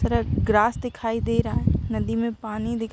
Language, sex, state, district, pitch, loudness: Hindi, female, Jharkhand, Sahebganj, 215 Hz, -24 LUFS